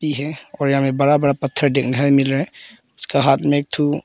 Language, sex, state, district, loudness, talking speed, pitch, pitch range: Hindi, male, Arunachal Pradesh, Papum Pare, -18 LUFS, 235 wpm, 140 Hz, 135-145 Hz